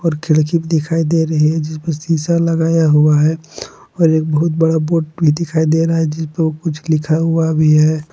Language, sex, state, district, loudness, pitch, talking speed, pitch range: Hindi, male, Jharkhand, Palamu, -15 LUFS, 160 Hz, 200 wpm, 155-165 Hz